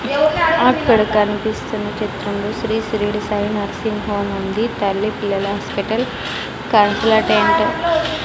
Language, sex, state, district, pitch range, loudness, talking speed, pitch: Telugu, female, Andhra Pradesh, Sri Satya Sai, 205-235 Hz, -18 LUFS, 110 wpm, 215 Hz